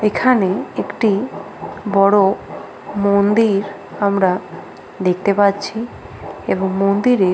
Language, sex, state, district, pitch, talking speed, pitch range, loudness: Bengali, female, West Bengal, Paschim Medinipur, 200 Hz, 75 wpm, 195-210 Hz, -17 LUFS